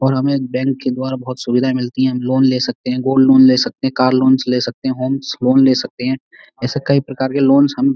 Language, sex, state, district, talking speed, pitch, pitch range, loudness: Hindi, male, Uttar Pradesh, Budaun, 285 wpm, 130 Hz, 125-135 Hz, -15 LUFS